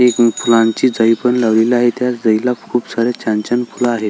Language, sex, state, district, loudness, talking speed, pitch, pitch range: Marathi, male, Maharashtra, Solapur, -15 LUFS, 220 wpm, 120 Hz, 115-125 Hz